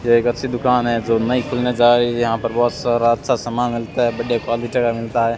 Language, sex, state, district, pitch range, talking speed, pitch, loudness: Hindi, male, Rajasthan, Bikaner, 115-120 Hz, 255 wpm, 120 Hz, -18 LUFS